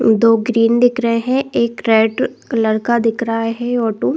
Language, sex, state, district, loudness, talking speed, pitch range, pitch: Hindi, female, Uttar Pradesh, Jalaun, -16 LUFS, 200 wpm, 225-240 Hz, 230 Hz